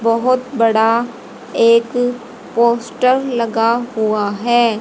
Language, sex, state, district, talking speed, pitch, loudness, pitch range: Hindi, female, Haryana, Jhajjar, 85 wpm, 235 Hz, -16 LUFS, 230-245 Hz